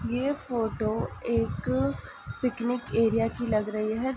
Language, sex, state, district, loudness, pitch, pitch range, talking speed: Hindi, female, Uttar Pradesh, Ghazipur, -28 LUFS, 225 Hz, 195-245 Hz, 130 wpm